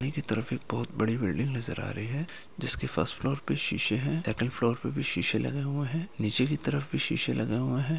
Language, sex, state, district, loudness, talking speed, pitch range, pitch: Hindi, male, Bihar, Gaya, -30 LUFS, 200 wpm, 115-145 Hz, 130 Hz